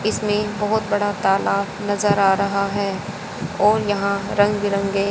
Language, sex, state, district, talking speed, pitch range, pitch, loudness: Hindi, female, Haryana, Jhajjar, 140 wpm, 200-205 Hz, 205 Hz, -20 LUFS